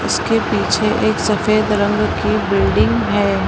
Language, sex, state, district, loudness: Hindi, female, Maharashtra, Mumbai Suburban, -16 LUFS